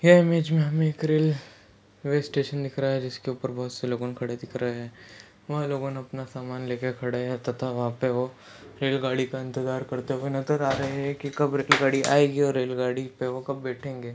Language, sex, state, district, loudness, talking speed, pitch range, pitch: Marathi, male, Maharashtra, Sindhudurg, -27 LUFS, 230 wpm, 125-140 Hz, 130 Hz